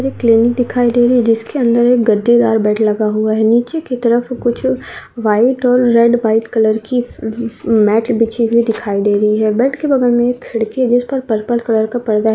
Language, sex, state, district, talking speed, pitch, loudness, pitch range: Hindi, female, Maharashtra, Sindhudurg, 175 wpm, 235 Hz, -14 LUFS, 220-245 Hz